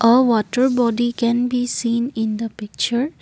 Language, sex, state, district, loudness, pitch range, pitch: English, female, Assam, Kamrup Metropolitan, -19 LUFS, 230-245 Hz, 235 Hz